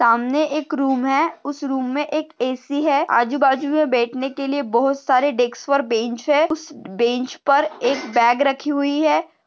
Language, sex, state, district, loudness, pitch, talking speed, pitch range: Hindi, female, Maharashtra, Sindhudurg, -19 LUFS, 275 Hz, 190 wpm, 250-295 Hz